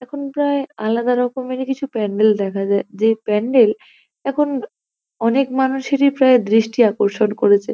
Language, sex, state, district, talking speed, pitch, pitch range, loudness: Bengali, female, West Bengal, North 24 Parganas, 140 wpm, 240 Hz, 215-270 Hz, -18 LUFS